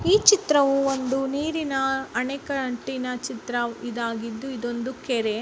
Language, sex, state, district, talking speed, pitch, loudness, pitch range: Kannada, female, Karnataka, Chamarajanagar, 110 wpm, 260 Hz, -25 LUFS, 240-275 Hz